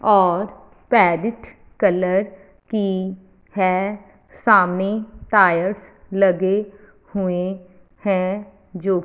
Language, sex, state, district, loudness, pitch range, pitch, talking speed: Hindi, female, Punjab, Fazilka, -20 LUFS, 185-205 Hz, 195 Hz, 75 wpm